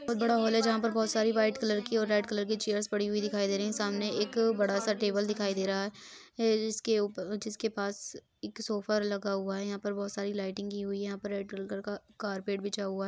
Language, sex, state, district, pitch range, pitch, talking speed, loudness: Hindi, female, Uttar Pradesh, Ghazipur, 200-220 Hz, 205 Hz, 265 wpm, -32 LUFS